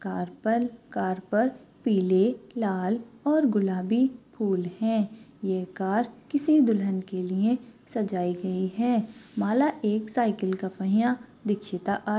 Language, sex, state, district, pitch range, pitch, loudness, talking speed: Marathi, female, Maharashtra, Sindhudurg, 190-240 Hz, 215 Hz, -27 LUFS, 130 wpm